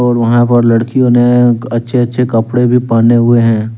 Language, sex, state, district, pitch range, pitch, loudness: Hindi, male, Jharkhand, Deoghar, 115-125 Hz, 120 Hz, -10 LUFS